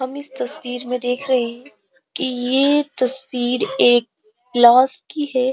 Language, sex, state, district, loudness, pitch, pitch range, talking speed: Hindi, female, Uttar Pradesh, Jyotiba Phule Nagar, -18 LUFS, 255 Hz, 245-270 Hz, 150 wpm